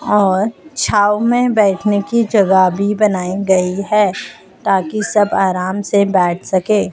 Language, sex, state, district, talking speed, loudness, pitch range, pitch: Hindi, female, Madhya Pradesh, Dhar, 140 wpm, -15 LUFS, 190-210 Hz, 200 Hz